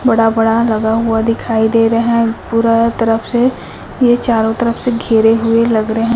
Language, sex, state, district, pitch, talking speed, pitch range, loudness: Hindi, female, Chhattisgarh, Raipur, 230 Hz, 165 wpm, 225-230 Hz, -13 LUFS